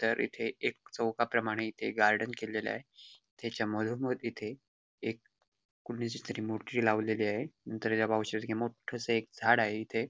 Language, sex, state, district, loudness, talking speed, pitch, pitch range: Marathi, male, Goa, North and South Goa, -33 LUFS, 150 wpm, 115 Hz, 110-115 Hz